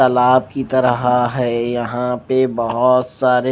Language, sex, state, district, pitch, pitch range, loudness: Hindi, male, Maharashtra, Mumbai Suburban, 125 Hz, 120-130 Hz, -16 LUFS